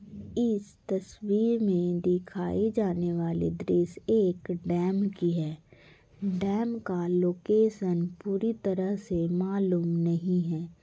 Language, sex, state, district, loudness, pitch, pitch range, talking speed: Hindi, female, Bihar, Gaya, -29 LUFS, 180 Hz, 175-200 Hz, 115 wpm